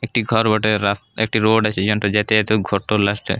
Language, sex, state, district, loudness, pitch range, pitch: Bengali, male, Jharkhand, Jamtara, -18 LUFS, 105-110 Hz, 110 Hz